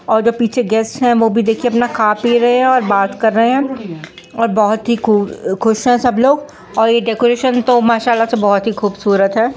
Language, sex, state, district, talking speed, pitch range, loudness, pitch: Hindi, female, Bihar, Saharsa, 230 wpm, 220-245 Hz, -14 LUFS, 230 Hz